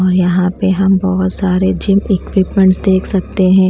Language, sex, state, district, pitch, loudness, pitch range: Hindi, female, Bihar, Patna, 190 Hz, -13 LUFS, 185-190 Hz